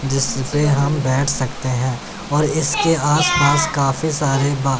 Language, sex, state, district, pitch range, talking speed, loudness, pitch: Hindi, male, Chandigarh, Chandigarh, 135-150 Hz, 150 wpm, -18 LUFS, 140 Hz